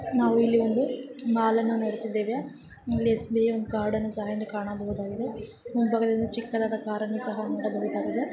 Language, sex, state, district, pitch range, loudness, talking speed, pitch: Kannada, female, Karnataka, Chamarajanagar, 215-230 Hz, -27 LUFS, 125 wpm, 225 Hz